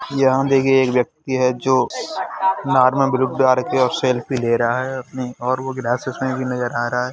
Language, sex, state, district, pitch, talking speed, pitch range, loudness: Hindi, male, Uttar Pradesh, Hamirpur, 130 Hz, 195 wpm, 125-130 Hz, -19 LUFS